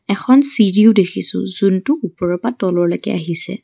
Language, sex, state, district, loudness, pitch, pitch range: Assamese, female, Assam, Kamrup Metropolitan, -15 LUFS, 195 Hz, 180-230 Hz